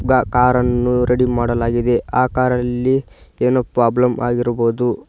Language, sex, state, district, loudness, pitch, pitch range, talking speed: Kannada, male, Karnataka, Koppal, -17 LUFS, 125 Hz, 120-125 Hz, 130 wpm